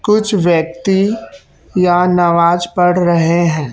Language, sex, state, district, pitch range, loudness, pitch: Hindi, male, Chhattisgarh, Raipur, 170-190 Hz, -13 LUFS, 175 Hz